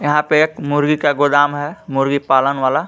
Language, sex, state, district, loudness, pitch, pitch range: Hindi, male, Jharkhand, Garhwa, -16 LUFS, 145 Hz, 140-150 Hz